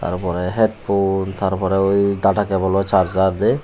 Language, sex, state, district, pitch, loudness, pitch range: Chakma, male, Tripura, Unakoti, 95 Hz, -18 LUFS, 95-100 Hz